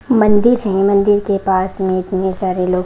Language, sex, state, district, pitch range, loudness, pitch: Hindi, female, Haryana, Jhajjar, 185-205 Hz, -15 LUFS, 195 Hz